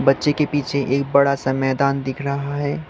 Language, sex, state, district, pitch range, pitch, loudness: Hindi, male, Sikkim, Gangtok, 135-145 Hz, 140 Hz, -20 LUFS